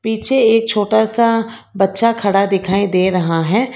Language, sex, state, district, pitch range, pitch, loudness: Hindi, female, Karnataka, Bangalore, 195-230 Hz, 220 Hz, -15 LUFS